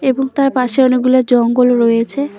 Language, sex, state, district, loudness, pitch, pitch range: Bengali, female, West Bengal, Cooch Behar, -13 LUFS, 255 Hz, 245-270 Hz